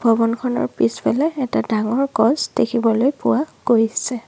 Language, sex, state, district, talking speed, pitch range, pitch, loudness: Assamese, female, Assam, Sonitpur, 110 wpm, 225-265 Hz, 235 Hz, -19 LUFS